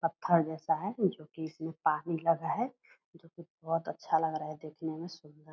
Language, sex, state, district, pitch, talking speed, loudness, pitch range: Hindi, female, Bihar, Purnia, 160 Hz, 215 wpm, -33 LUFS, 155-170 Hz